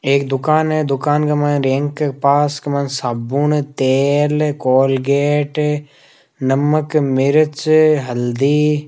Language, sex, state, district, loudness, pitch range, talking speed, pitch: Hindi, male, Rajasthan, Nagaur, -16 LUFS, 135-150 Hz, 110 wpm, 145 Hz